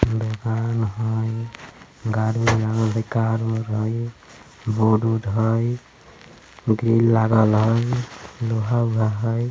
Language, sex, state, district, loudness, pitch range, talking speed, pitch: Hindi, male, Bihar, Vaishali, -21 LUFS, 110-115 Hz, 115 wpm, 110 Hz